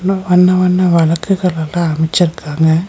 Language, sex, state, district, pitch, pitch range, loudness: Tamil, female, Tamil Nadu, Nilgiris, 175 Hz, 160-180 Hz, -13 LUFS